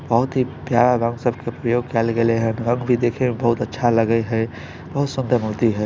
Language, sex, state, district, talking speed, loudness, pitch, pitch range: Maithili, male, Bihar, Samastipur, 145 wpm, -20 LUFS, 120 Hz, 115-125 Hz